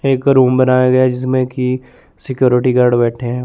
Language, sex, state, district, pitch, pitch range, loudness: Hindi, male, Chandigarh, Chandigarh, 130 Hz, 125-130 Hz, -13 LUFS